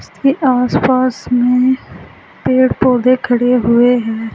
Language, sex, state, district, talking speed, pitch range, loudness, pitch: Hindi, female, Uttar Pradesh, Saharanpur, 110 wpm, 245-255 Hz, -13 LUFS, 250 Hz